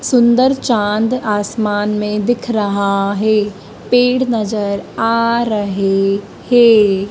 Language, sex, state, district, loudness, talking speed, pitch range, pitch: Hindi, male, Madhya Pradesh, Dhar, -15 LUFS, 100 wpm, 205-235 Hz, 210 Hz